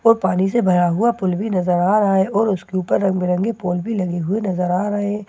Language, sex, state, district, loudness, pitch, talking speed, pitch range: Hindi, female, Bihar, Katihar, -19 LUFS, 190 Hz, 260 wpm, 180-210 Hz